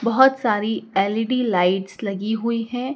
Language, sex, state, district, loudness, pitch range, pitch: Hindi, female, Madhya Pradesh, Dhar, -21 LUFS, 200-245 Hz, 220 Hz